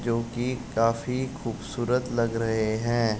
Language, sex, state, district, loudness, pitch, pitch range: Hindi, male, Uttar Pradesh, Jalaun, -27 LUFS, 115 Hz, 115-125 Hz